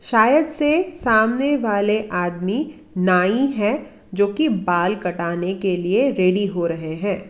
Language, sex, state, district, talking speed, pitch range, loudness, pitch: Hindi, female, Karnataka, Bangalore, 140 wpm, 180-265 Hz, -19 LUFS, 205 Hz